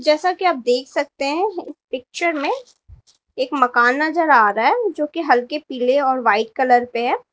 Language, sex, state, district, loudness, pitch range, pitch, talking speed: Hindi, female, Uttar Pradesh, Lalitpur, -18 LUFS, 250-340 Hz, 290 Hz, 190 wpm